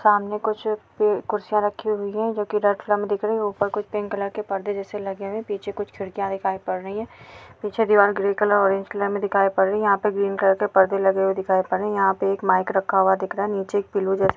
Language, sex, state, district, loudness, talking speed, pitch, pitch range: Hindi, female, Chhattisgarh, Kabirdham, -22 LUFS, 285 wpm, 200 Hz, 195-210 Hz